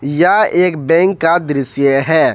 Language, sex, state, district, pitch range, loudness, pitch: Hindi, male, Jharkhand, Ranchi, 140-175 Hz, -12 LUFS, 160 Hz